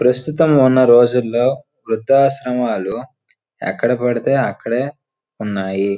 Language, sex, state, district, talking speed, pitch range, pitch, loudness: Telugu, male, Andhra Pradesh, Srikakulam, 70 wpm, 120-135 Hz, 125 Hz, -16 LUFS